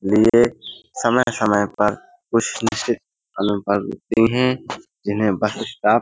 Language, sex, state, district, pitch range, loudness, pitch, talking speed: Hindi, male, Uttar Pradesh, Hamirpur, 100-120 Hz, -20 LUFS, 105 Hz, 70 wpm